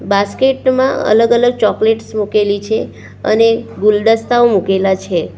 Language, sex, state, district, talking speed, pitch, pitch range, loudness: Gujarati, female, Gujarat, Valsad, 125 wpm, 215 Hz, 205-235 Hz, -13 LUFS